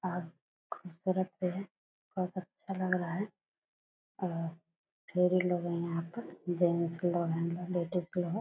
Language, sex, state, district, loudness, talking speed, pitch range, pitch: Hindi, female, Bihar, Purnia, -35 LUFS, 155 wpm, 170-185 Hz, 180 Hz